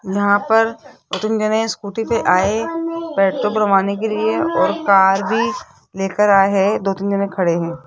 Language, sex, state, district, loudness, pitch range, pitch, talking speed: Hindi, female, Rajasthan, Jaipur, -17 LUFS, 195-225 Hz, 205 Hz, 175 wpm